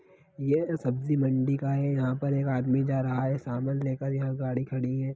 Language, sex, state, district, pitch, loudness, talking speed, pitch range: Hindi, male, Bihar, Jahanabad, 135 Hz, -28 LUFS, 210 wpm, 130-140 Hz